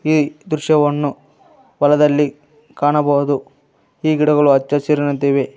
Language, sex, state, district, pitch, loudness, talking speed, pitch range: Kannada, male, Karnataka, Koppal, 145 Hz, -16 LUFS, 75 wpm, 140-150 Hz